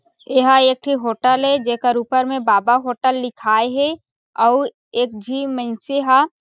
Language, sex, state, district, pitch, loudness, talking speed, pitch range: Chhattisgarhi, female, Chhattisgarh, Sarguja, 255 Hz, -17 LUFS, 160 wpm, 240-270 Hz